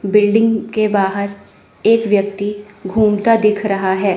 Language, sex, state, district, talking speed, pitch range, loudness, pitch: Hindi, female, Chandigarh, Chandigarh, 130 wpm, 200-215 Hz, -16 LUFS, 205 Hz